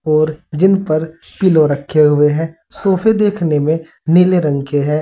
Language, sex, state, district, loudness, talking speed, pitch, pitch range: Hindi, male, Uttar Pradesh, Saharanpur, -14 LUFS, 155 wpm, 160 Hz, 150-180 Hz